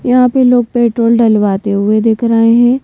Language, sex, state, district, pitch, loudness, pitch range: Hindi, female, Madhya Pradesh, Bhopal, 230 Hz, -11 LUFS, 220-245 Hz